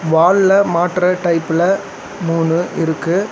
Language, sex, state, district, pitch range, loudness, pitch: Tamil, male, Tamil Nadu, Chennai, 165-190 Hz, -15 LUFS, 175 Hz